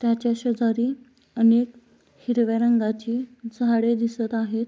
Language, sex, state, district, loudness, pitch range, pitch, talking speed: Marathi, female, Maharashtra, Sindhudurg, -23 LUFS, 230-240 Hz, 235 Hz, 100 wpm